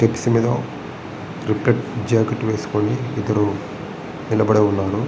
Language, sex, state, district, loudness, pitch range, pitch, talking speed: Telugu, male, Andhra Pradesh, Srikakulam, -20 LUFS, 105-115 Hz, 110 Hz, 85 wpm